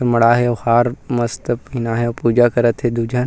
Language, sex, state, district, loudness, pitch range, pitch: Chhattisgarhi, male, Chhattisgarh, Rajnandgaon, -17 LUFS, 115-120 Hz, 120 Hz